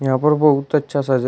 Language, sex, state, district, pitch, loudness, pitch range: Hindi, male, Uttar Pradesh, Shamli, 140 Hz, -17 LUFS, 135-150 Hz